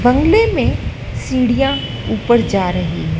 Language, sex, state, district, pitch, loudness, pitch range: Hindi, female, Madhya Pradesh, Dhar, 250 Hz, -16 LUFS, 235-275 Hz